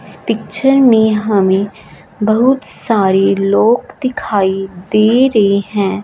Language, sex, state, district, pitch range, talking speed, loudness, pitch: Hindi, female, Punjab, Fazilka, 195-235 Hz, 110 wpm, -13 LUFS, 210 Hz